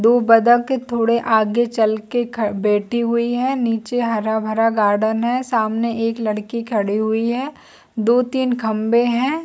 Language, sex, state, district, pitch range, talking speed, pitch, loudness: Hindi, female, Chhattisgarh, Bilaspur, 220-240 Hz, 160 wpm, 230 Hz, -18 LUFS